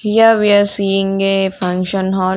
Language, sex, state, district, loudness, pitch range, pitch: English, female, Punjab, Fazilka, -14 LUFS, 190-205 Hz, 195 Hz